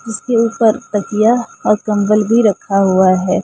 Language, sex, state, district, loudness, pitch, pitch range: Hindi, female, Jharkhand, Deoghar, -14 LUFS, 215 Hz, 200-230 Hz